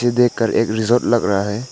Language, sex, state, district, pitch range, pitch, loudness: Hindi, male, Arunachal Pradesh, Lower Dibang Valley, 110-120 Hz, 115 Hz, -17 LUFS